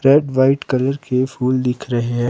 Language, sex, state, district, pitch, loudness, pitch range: Hindi, male, Himachal Pradesh, Shimla, 130 Hz, -18 LUFS, 125-135 Hz